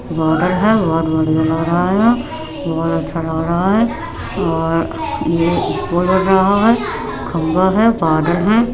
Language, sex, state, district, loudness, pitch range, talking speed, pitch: Hindi, female, Uttar Pradesh, Etah, -16 LUFS, 165-205 Hz, 125 wpm, 175 Hz